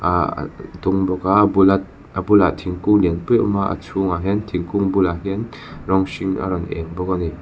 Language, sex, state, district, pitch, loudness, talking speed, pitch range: Mizo, male, Mizoram, Aizawl, 95 Hz, -19 LUFS, 225 wpm, 90-100 Hz